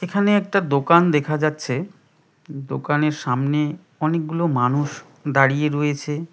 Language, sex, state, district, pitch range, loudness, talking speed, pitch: Bengali, male, West Bengal, Cooch Behar, 145-165 Hz, -20 LUFS, 105 wpm, 150 Hz